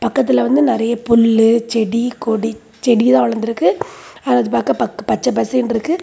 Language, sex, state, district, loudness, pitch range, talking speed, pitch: Tamil, female, Tamil Nadu, Kanyakumari, -15 LUFS, 225-245 Hz, 150 wpm, 230 Hz